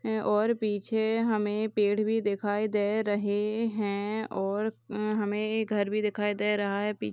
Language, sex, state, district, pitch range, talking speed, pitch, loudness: Hindi, female, Goa, North and South Goa, 205-220 Hz, 170 wpm, 210 Hz, -29 LUFS